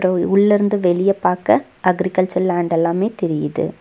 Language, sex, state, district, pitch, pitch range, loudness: Tamil, female, Tamil Nadu, Nilgiris, 185 Hz, 175-195 Hz, -17 LUFS